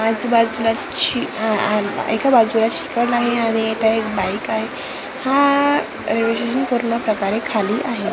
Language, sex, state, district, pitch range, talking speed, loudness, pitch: Marathi, female, Maharashtra, Gondia, 220-240 Hz, 120 wpm, -18 LUFS, 225 Hz